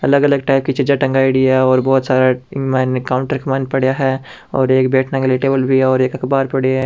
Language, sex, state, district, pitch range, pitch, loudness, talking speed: Rajasthani, male, Rajasthan, Churu, 130-135 Hz, 130 Hz, -15 LUFS, 270 wpm